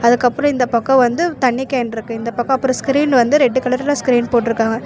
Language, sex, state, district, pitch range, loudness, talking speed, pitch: Tamil, female, Karnataka, Bangalore, 235-265 Hz, -16 LUFS, 185 wpm, 250 Hz